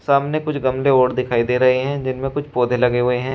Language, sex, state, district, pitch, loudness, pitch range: Hindi, male, Uttar Pradesh, Shamli, 130 Hz, -18 LUFS, 125-140 Hz